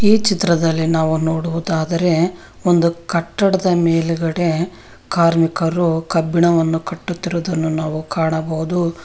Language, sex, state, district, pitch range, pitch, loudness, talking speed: Kannada, female, Karnataka, Bangalore, 160-175 Hz, 165 Hz, -18 LUFS, 80 wpm